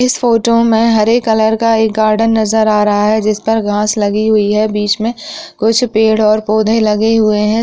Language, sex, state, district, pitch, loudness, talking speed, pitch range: Hindi, female, Bihar, Madhepura, 220 Hz, -12 LUFS, 210 wpm, 215-225 Hz